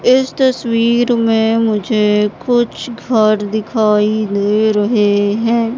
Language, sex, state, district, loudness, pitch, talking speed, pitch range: Hindi, female, Madhya Pradesh, Katni, -14 LUFS, 220 Hz, 105 wpm, 210-235 Hz